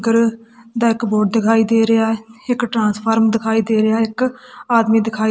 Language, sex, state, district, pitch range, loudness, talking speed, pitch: Punjabi, female, Punjab, Kapurthala, 225-230 Hz, -17 LUFS, 190 wpm, 225 Hz